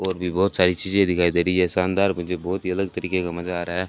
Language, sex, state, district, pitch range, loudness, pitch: Hindi, male, Rajasthan, Bikaner, 90-95 Hz, -22 LUFS, 90 Hz